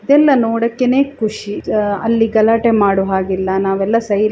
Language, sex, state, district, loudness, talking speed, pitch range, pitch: Kannada, female, Karnataka, Chamarajanagar, -15 LUFS, 150 wpm, 200-230 Hz, 220 Hz